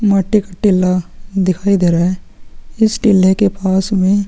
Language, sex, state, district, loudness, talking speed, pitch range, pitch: Hindi, male, Chhattisgarh, Sukma, -14 LUFS, 170 wpm, 185-200 Hz, 190 Hz